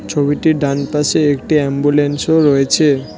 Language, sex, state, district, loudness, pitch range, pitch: Bengali, male, West Bengal, Cooch Behar, -14 LUFS, 140-150 Hz, 145 Hz